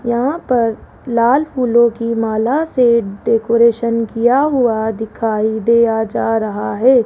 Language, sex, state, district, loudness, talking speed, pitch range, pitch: Hindi, female, Rajasthan, Jaipur, -15 LUFS, 125 wpm, 220-245 Hz, 235 Hz